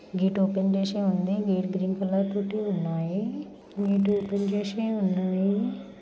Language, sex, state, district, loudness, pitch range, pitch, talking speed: Telugu, female, Telangana, Karimnagar, -27 LUFS, 190-205 Hz, 195 Hz, 130 wpm